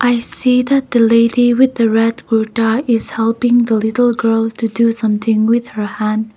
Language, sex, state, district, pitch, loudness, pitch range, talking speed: English, female, Nagaland, Kohima, 230 Hz, -14 LUFS, 225-240 Hz, 180 wpm